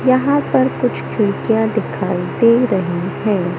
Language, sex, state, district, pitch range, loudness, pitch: Hindi, male, Madhya Pradesh, Katni, 185-235 Hz, -17 LUFS, 215 Hz